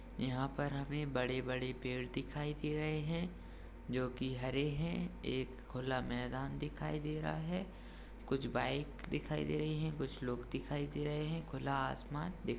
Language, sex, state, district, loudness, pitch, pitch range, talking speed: Hindi, male, Maharashtra, Dhule, -39 LUFS, 140 Hz, 130-155 Hz, 165 wpm